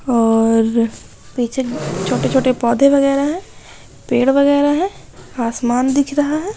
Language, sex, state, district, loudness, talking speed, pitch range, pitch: Hindi, female, Bihar, Bhagalpur, -16 LUFS, 120 wpm, 235-285 Hz, 265 Hz